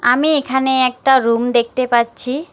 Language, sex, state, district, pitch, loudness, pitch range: Bengali, female, West Bengal, Alipurduar, 255 Hz, -15 LUFS, 240-265 Hz